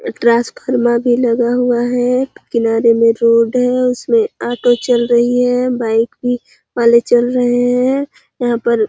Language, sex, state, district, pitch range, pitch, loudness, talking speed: Hindi, female, Chhattisgarh, Sarguja, 235-250 Hz, 245 Hz, -14 LUFS, 150 wpm